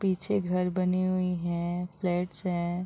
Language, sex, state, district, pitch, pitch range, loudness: Hindi, female, Chhattisgarh, Bilaspur, 180 Hz, 175-185 Hz, -29 LUFS